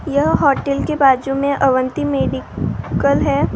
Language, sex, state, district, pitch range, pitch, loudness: Hindi, female, Maharashtra, Gondia, 270-280 Hz, 275 Hz, -17 LUFS